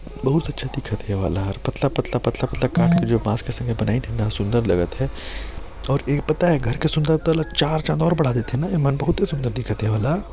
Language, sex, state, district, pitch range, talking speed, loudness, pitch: Chhattisgarhi, male, Chhattisgarh, Sarguja, 110-155 Hz, 230 wpm, -22 LUFS, 130 Hz